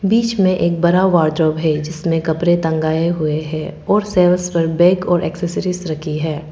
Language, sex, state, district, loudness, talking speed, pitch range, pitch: Hindi, female, Arunachal Pradesh, Papum Pare, -16 LUFS, 145 wpm, 155-180 Hz, 170 Hz